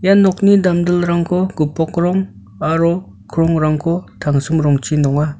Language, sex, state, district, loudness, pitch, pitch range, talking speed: Garo, male, Meghalaya, North Garo Hills, -16 LUFS, 165 Hz, 150-180 Hz, 110 wpm